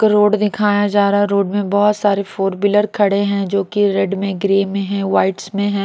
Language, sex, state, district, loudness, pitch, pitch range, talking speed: Hindi, female, Maharashtra, Mumbai Suburban, -16 LUFS, 200 Hz, 195-205 Hz, 235 wpm